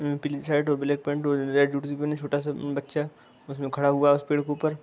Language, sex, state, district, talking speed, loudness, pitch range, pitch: Hindi, female, Bihar, Darbhanga, 200 wpm, -26 LUFS, 140-145 Hz, 145 Hz